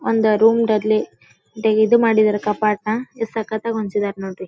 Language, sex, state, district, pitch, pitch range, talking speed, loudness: Kannada, female, Karnataka, Dharwad, 215 Hz, 210-225 Hz, 145 wpm, -18 LUFS